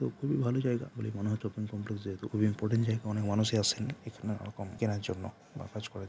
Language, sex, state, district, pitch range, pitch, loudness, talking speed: Bengali, male, West Bengal, Jhargram, 105-115 Hz, 110 Hz, -33 LUFS, 245 wpm